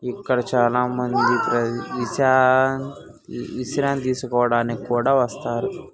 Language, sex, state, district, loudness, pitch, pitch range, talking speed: Telugu, male, Andhra Pradesh, Chittoor, -21 LUFS, 125 Hz, 120-130 Hz, 80 wpm